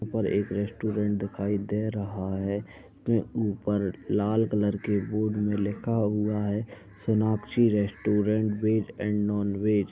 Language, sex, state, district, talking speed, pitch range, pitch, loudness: Hindi, male, Uttarakhand, Uttarkashi, 145 wpm, 100-110 Hz, 105 Hz, -28 LUFS